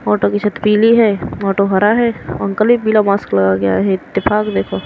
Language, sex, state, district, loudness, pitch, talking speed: Hindi, female, Haryana, Rohtak, -14 LUFS, 200 Hz, 235 wpm